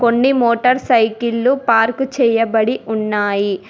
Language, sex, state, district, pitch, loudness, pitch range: Telugu, female, Telangana, Hyderabad, 235 Hz, -15 LUFS, 220-250 Hz